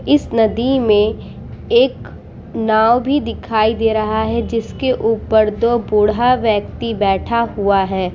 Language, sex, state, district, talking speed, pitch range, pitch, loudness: Hindi, female, Bihar, Vaishali, 145 wpm, 215-235 Hz, 225 Hz, -16 LUFS